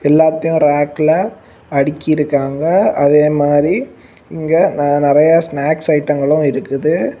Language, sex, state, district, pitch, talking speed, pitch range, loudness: Tamil, male, Tamil Nadu, Kanyakumari, 150 Hz, 90 wpm, 145-155 Hz, -14 LUFS